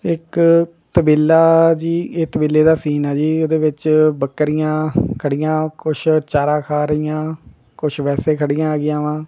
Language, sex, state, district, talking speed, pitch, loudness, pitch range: Punjabi, male, Punjab, Kapurthala, 140 wpm, 155 Hz, -16 LUFS, 150-160 Hz